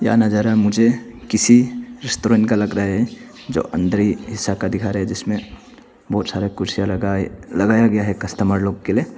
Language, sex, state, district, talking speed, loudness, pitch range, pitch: Hindi, male, Arunachal Pradesh, Papum Pare, 185 wpm, -19 LUFS, 100-115 Hz, 105 Hz